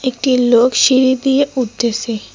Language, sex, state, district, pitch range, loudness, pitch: Bengali, female, West Bengal, Cooch Behar, 235-260 Hz, -14 LUFS, 255 Hz